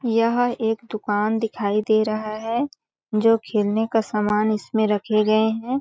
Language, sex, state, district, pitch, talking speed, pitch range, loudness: Hindi, female, Chhattisgarh, Balrampur, 220 Hz, 155 wpm, 215-225 Hz, -22 LUFS